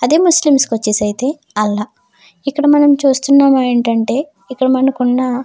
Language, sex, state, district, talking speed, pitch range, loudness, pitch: Telugu, female, Andhra Pradesh, Chittoor, 145 wpm, 230-280 Hz, -13 LUFS, 255 Hz